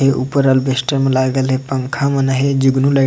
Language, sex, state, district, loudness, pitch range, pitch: Sadri, male, Chhattisgarh, Jashpur, -15 LUFS, 130-135 Hz, 135 Hz